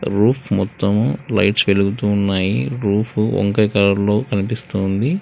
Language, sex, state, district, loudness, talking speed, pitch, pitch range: Telugu, male, Telangana, Hyderabad, -18 LUFS, 115 wpm, 105 Hz, 100-110 Hz